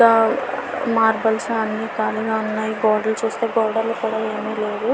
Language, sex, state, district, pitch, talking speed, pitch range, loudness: Telugu, female, Andhra Pradesh, Visakhapatnam, 220 Hz, 120 wpm, 215-225 Hz, -20 LUFS